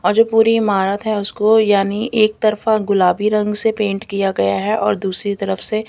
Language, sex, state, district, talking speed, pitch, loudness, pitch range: Hindi, female, Delhi, New Delhi, 205 wpm, 210 Hz, -16 LUFS, 200-220 Hz